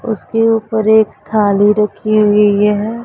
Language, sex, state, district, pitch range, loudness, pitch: Hindi, male, Punjab, Pathankot, 210-220 Hz, -12 LUFS, 215 Hz